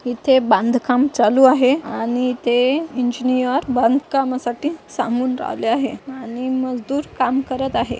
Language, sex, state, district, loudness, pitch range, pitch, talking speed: Marathi, female, Maharashtra, Nagpur, -18 LUFS, 245-270 Hz, 255 Hz, 120 wpm